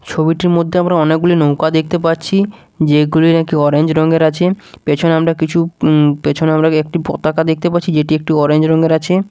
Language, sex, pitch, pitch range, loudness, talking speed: Bengali, male, 160 Hz, 155-170 Hz, -13 LUFS, 175 wpm